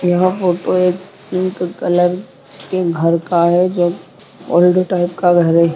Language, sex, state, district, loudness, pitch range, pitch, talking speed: Hindi, male, Bihar, Purnia, -15 LUFS, 175-185 Hz, 175 Hz, 155 wpm